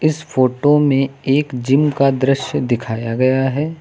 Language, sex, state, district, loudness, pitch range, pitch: Hindi, female, Uttar Pradesh, Lucknow, -16 LUFS, 130-145 Hz, 135 Hz